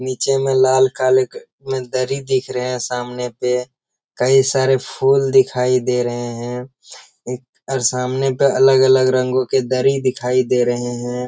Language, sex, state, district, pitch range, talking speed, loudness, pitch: Hindi, male, Bihar, Jamui, 125-130 Hz, 165 wpm, -17 LUFS, 130 Hz